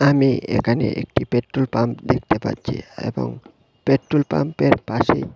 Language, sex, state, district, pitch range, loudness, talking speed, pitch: Bengali, male, Tripura, West Tripura, 115-135 Hz, -21 LUFS, 125 wpm, 120 Hz